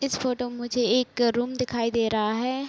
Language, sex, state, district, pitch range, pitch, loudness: Hindi, female, Uttar Pradesh, Gorakhpur, 235-255 Hz, 245 Hz, -25 LUFS